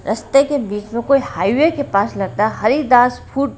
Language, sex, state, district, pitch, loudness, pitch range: Hindi, female, Haryana, Rohtak, 250 Hz, -16 LUFS, 210-280 Hz